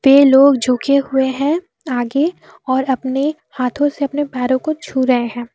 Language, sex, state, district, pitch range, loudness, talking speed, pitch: Hindi, female, Jharkhand, Deoghar, 260-285 Hz, -16 LUFS, 175 wpm, 270 Hz